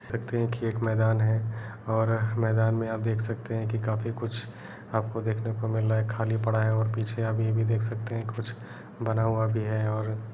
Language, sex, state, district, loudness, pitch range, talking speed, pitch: Kumaoni, male, Uttarakhand, Uttarkashi, -28 LUFS, 110-115 Hz, 230 wpm, 110 Hz